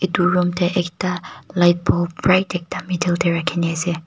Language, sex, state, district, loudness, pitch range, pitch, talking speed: Nagamese, female, Nagaland, Kohima, -19 LUFS, 175-180 Hz, 175 Hz, 175 wpm